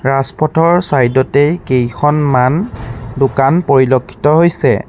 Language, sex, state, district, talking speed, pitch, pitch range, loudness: Assamese, male, Assam, Sonitpur, 85 wpm, 135 Hz, 130-155 Hz, -12 LUFS